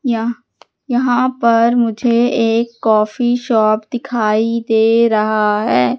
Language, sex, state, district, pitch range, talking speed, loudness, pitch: Hindi, female, Madhya Pradesh, Katni, 220-240 Hz, 110 wpm, -15 LUFS, 230 Hz